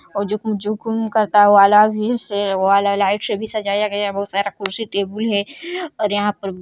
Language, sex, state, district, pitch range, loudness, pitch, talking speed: Hindi, female, Chhattisgarh, Sarguja, 200-215 Hz, -18 LUFS, 205 Hz, 200 wpm